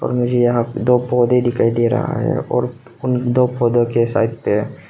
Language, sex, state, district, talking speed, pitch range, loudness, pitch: Hindi, male, Arunachal Pradesh, Papum Pare, 195 wpm, 120-125 Hz, -17 LUFS, 120 Hz